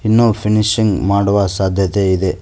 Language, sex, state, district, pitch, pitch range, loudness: Kannada, male, Karnataka, Koppal, 100 Hz, 95-105 Hz, -15 LUFS